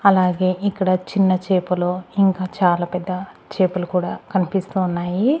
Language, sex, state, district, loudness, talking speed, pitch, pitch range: Telugu, female, Andhra Pradesh, Annamaya, -20 LUFS, 120 wpm, 185 Hz, 180-195 Hz